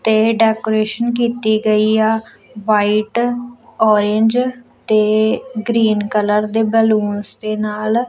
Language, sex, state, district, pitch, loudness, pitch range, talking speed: Punjabi, female, Punjab, Kapurthala, 220 Hz, -16 LUFS, 215-230 Hz, 105 wpm